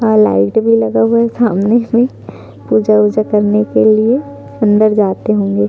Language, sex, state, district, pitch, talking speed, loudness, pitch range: Hindi, female, Chhattisgarh, Sukma, 215 Hz, 170 wpm, -12 LUFS, 200-230 Hz